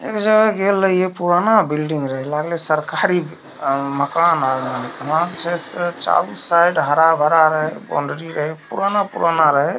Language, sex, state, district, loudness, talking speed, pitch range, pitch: Maithili, male, Bihar, Darbhanga, -18 LUFS, 115 wpm, 150-175 Hz, 165 Hz